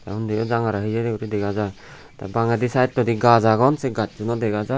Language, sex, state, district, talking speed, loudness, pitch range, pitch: Chakma, male, Tripura, Unakoti, 225 wpm, -21 LUFS, 105-120 Hz, 115 Hz